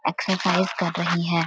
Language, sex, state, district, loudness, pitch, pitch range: Hindi, female, Uttar Pradesh, Etah, -23 LUFS, 175 Hz, 170-190 Hz